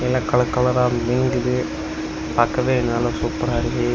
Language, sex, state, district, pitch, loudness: Tamil, male, Tamil Nadu, Kanyakumari, 80 Hz, -21 LUFS